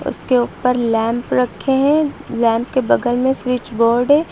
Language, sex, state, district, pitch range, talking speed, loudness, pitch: Hindi, female, Uttar Pradesh, Lucknow, 235-265 Hz, 165 wpm, -17 LUFS, 250 Hz